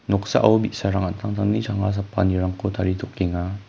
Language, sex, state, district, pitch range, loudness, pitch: Garo, male, Meghalaya, West Garo Hills, 95-105 Hz, -22 LUFS, 100 Hz